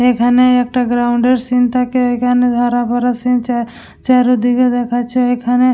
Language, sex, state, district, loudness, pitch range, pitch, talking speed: Bengali, female, West Bengal, Dakshin Dinajpur, -14 LUFS, 245-250 Hz, 245 Hz, 135 wpm